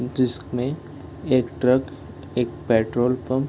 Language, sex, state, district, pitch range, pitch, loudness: Hindi, male, Bihar, Gopalganj, 120-130 Hz, 125 Hz, -23 LUFS